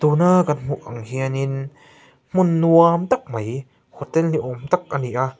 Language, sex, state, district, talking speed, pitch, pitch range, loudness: Mizo, male, Mizoram, Aizawl, 165 wpm, 140 Hz, 130-165 Hz, -20 LUFS